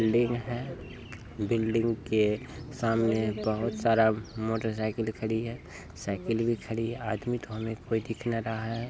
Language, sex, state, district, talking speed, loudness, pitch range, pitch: Bhojpuri, male, Bihar, Saran, 150 wpm, -30 LUFS, 110-115 Hz, 115 Hz